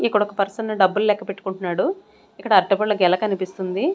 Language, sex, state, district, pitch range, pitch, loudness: Telugu, female, Andhra Pradesh, Sri Satya Sai, 190-215 Hz, 200 Hz, -21 LUFS